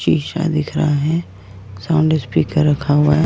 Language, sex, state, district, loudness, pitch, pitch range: Hindi, female, Goa, North and South Goa, -17 LUFS, 150 Hz, 145-155 Hz